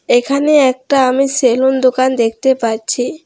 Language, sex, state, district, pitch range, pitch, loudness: Bengali, female, West Bengal, Alipurduar, 245-270 Hz, 260 Hz, -13 LUFS